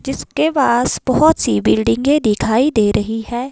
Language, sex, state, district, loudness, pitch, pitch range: Hindi, female, Himachal Pradesh, Shimla, -15 LUFS, 240 Hz, 215-275 Hz